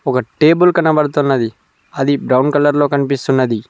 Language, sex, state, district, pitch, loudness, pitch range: Telugu, male, Telangana, Mahabubabad, 140 Hz, -14 LUFS, 130-145 Hz